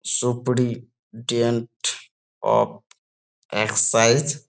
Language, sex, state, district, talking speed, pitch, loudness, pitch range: Bengali, male, West Bengal, Jalpaiguri, 65 wpm, 120 Hz, -21 LUFS, 115-125 Hz